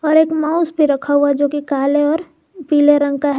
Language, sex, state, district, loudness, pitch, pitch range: Hindi, female, Jharkhand, Garhwa, -15 LUFS, 295 Hz, 285-315 Hz